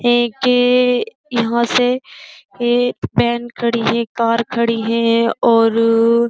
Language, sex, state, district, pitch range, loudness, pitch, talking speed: Hindi, female, Uttar Pradesh, Jyotiba Phule Nagar, 230-245 Hz, -16 LUFS, 235 Hz, 115 wpm